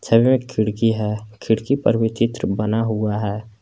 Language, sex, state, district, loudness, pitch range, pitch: Hindi, male, Jharkhand, Palamu, -20 LUFS, 105-115 Hz, 110 Hz